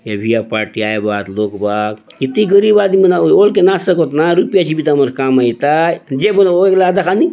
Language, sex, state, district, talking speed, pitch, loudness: Halbi, male, Chhattisgarh, Bastar, 220 wpm, 155 Hz, -13 LUFS